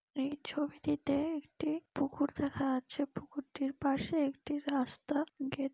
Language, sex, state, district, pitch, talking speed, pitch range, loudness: Bengali, female, West Bengal, Dakshin Dinajpur, 285 Hz, 115 wpm, 275-295 Hz, -36 LUFS